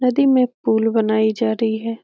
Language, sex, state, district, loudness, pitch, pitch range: Hindi, female, Bihar, Saran, -18 LUFS, 225 Hz, 220-250 Hz